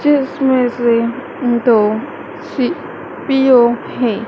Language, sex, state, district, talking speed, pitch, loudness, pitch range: Hindi, female, Madhya Pradesh, Dhar, 70 wpm, 245 Hz, -14 LUFS, 235-270 Hz